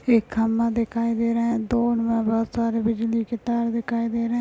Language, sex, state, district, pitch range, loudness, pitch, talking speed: Hindi, female, Chhattisgarh, Bastar, 230-235 Hz, -23 LUFS, 230 Hz, 230 wpm